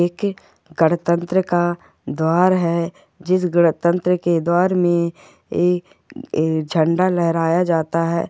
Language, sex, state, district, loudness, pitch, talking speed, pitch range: Hindi, female, Goa, North and South Goa, -19 LUFS, 175 Hz, 110 wpm, 165-180 Hz